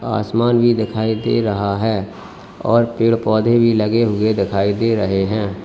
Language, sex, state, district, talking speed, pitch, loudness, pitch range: Hindi, male, Uttar Pradesh, Lalitpur, 170 wpm, 110 Hz, -17 LUFS, 105-115 Hz